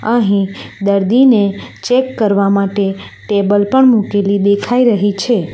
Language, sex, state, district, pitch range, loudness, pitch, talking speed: Gujarati, female, Gujarat, Valsad, 200-240 Hz, -13 LUFS, 205 Hz, 120 wpm